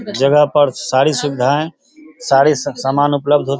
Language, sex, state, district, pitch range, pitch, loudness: Hindi, male, Bihar, Darbhanga, 135-155 Hz, 145 Hz, -14 LUFS